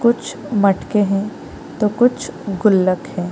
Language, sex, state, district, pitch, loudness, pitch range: Hindi, female, Bihar, East Champaran, 210 Hz, -18 LUFS, 195-235 Hz